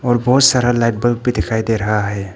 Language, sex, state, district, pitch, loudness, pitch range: Hindi, male, Arunachal Pradesh, Papum Pare, 115 Hz, -15 LUFS, 105-120 Hz